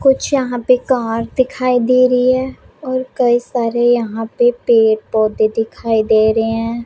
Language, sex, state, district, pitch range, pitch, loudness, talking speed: Punjabi, female, Punjab, Pathankot, 225-255 Hz, 240 Hz, -15 LUFS, 165 wpm